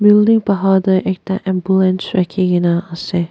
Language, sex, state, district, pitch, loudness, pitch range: Nagamese, female, Nagaland, Dimapur, 190 Hz, -15 LUFS, 180-195 Hz